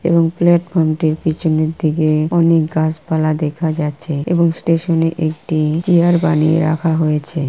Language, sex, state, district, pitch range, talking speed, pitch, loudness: Bengali, female, West Bengal, Purulia, 155-165 Hz, 120 wpm, 160 Hz, -16 LUFS